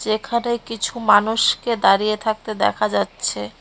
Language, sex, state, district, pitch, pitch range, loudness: Bengali, female, West Bengal, Cooch Behar, 220 Hz, 215-235 Hz, -19 LUFS